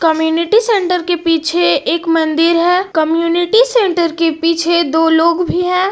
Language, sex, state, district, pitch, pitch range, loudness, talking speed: Hindi, female, Jharkhand, Palamu, 335 Hz, 330-360 Hz, -13 LUFS, 140 wpm